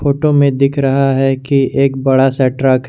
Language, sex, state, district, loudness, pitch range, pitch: Hindi, male, Jharkhand, Garhwa, -13 LUFS, 135-140 Hz, 135 Hz